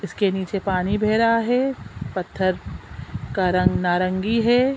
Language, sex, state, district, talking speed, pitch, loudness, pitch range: Hindi, female, Chhattisgarh, Sukma, 140 wpm, 185 Hz, -21 LUFS, 175-220 Hz